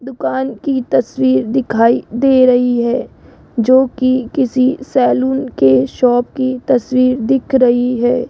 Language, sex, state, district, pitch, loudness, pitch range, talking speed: Hindi, female, Rajasthan, Jaipur, 250 Hz, -14 LUFS, 235-260 Hz, 130 wpm